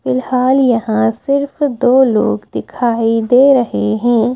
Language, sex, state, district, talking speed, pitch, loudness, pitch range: Hindi, female, Madhya Pradesh, Bhopal, 125 wpm, 245 Hz, -13 LUFS, 230-260 Hz